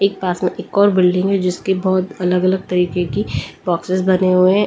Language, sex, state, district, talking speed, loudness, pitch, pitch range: Hindi, female, Delhi, New Delhi, 165 wpm, -17 LUFS, 185 Hz, 180-190 Hz